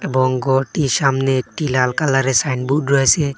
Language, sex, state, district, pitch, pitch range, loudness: Bengali, male, Assam, Hailakandi, 135 Hz, 130-140 Hz, -17 LUFS